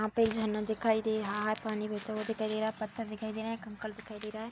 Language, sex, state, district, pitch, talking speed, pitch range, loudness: Hindi, female, Bihar, Vaishali, 220 Hz, 320 wpm, 215-220 Hz, -34 LUFS